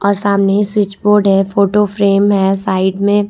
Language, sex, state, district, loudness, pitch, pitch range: Hindi, female, Jharkhand, Ranchi, -13 LUFS, 200 Hz, 195-205 Hz